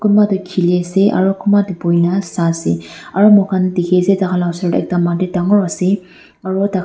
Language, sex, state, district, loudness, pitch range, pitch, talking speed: Nagamese, female, Nagaland, Dimapur, -15 LUFS, 175-195 Hz, 185 Hz, 220 wpm